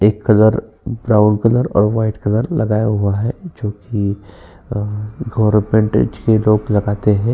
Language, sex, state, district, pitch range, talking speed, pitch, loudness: Hindi, male, Uttar Pradesh, Jyotiba Phule Nagar, 105-110 Hz, 105 wpm, 105 Hz, -16 LUFS